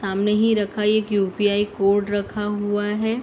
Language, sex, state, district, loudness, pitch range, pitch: Hindi, female, Uttar Pradesh, Deoria, -21 LUFS, 205-210 Hz, 205 Hz